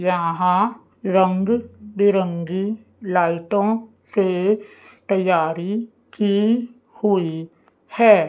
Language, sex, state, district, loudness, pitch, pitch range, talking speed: Hindi, female, Chandigarh, Chandigarh, -20 LUFS, 200 Hz, 180-215 Hz, 65 wpm